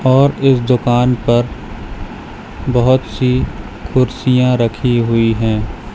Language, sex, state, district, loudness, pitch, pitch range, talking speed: Hindi, male, Madhya Pradesh, Katni, -14 LUFS, 125 Hz, 115-130 Hz, 100 wpm